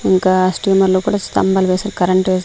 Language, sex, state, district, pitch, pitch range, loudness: Telugu, female, Andhra Pradesh, Manyam, 185 Hz, 185-195 Hz, -15 LUFS